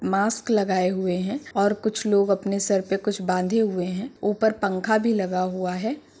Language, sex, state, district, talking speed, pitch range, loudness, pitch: Hindi, female, Bihar, Purnia, 195 wpm, 185-220 Hz, -24 LUFS, 200 Hz